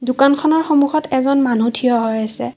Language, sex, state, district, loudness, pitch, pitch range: Assamese, female, Assam, Kamrup Metropolitan, -16 LUFS, 260 Hz, 240-285 Hz